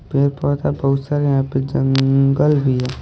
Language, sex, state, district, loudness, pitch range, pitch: Hindi, male, Haryana, Rohtak, -17 LUFS, 135-145 Hz, 135 Hz